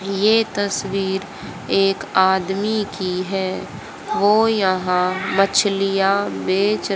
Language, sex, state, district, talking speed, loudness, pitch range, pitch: Hindi, female, Haryana, Jhajjar, 85 wpm, -19 LUFS, 190-205 Hz, 195 Hz